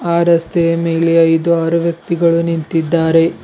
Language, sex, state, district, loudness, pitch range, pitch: Kannada, male, Karnataka, Bidar, -14 LUFS, 165-170 Hz, 165 Hz